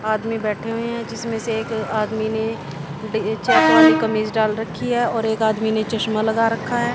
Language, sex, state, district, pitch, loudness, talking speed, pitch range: Hindi, female, Haryana, Jhajjar, 220 Hz, -20 LUFS, 190 wpm, 215-225 Hz